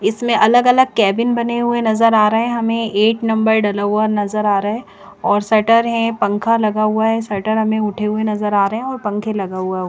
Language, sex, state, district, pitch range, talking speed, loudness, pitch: Hindi, female, Chandigarh, Chandigarh, 205-230 Hz, 240 wpm, -16 LUFS, 215 Hz